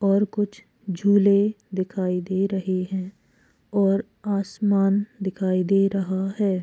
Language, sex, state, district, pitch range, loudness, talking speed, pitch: Hindi, female, Bihar, Purnia, 190-205 Hz, -23 LUFS, 115 wpm, 195 Hz